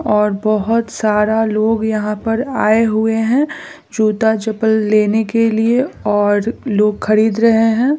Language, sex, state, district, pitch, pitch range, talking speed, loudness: Hindi, female, Bihar, Gaya, 220 Hz, 215-225 Hz, 145 wpm, -15 LUFS